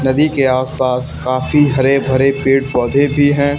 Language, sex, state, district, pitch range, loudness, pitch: Hindi, male, Haryana, Charkhi Dadri, 130-145 Hz, -14 LUFS, 135 Hz